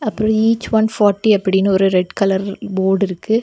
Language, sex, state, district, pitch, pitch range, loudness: Tamil, female, Tamil Nadu, Kanyakumari, 200 Hz, 190-220 Hz, -16 LUFS